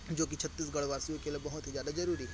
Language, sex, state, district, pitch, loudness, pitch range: Hindi, male, Chhattisgarh, Korba, 150 Hz, -37 LUFS, 145-160 Hz